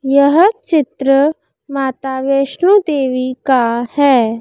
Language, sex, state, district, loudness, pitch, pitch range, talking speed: Hindi, female, Madhya Pradesh, Dhar, -14 LUFS, 275 Hz, 260-295 Hz, 95 wpm